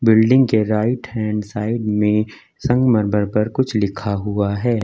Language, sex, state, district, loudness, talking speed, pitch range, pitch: Hindi, male, Uttar Pradesh, Lucknow, -18 LUFS, 150 wpm, 105-115 Hz, 105 Hz